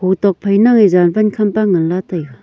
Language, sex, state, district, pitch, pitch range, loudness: Wancho, female, Arunachal Pradesh, Longding, 190 Hz, 175-210 Hz, -13 LUFS